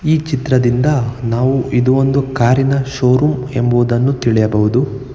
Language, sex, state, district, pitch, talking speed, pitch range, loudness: Kannada, male, Karnataka, Bangalore, 130 Hz, 105 wpm, 120-135 Hz, -14 LUFS